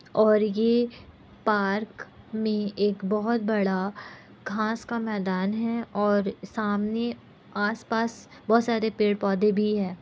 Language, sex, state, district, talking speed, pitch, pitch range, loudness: Hindi, female, Bihar, Kishanganj, 115 wpm, 215 Hz, 205-225 Hz, -26 LUFS